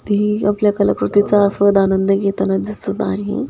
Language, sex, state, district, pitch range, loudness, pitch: Marathi, female, Maharashtra, Dhule, 195-210 Hz, -16 LUFS, 205 Hz